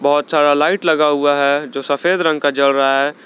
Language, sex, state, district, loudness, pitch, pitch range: Hindi, male, Jharkhand, Garhwa, -15 LUFS, 145 Hz, 140-150 Hz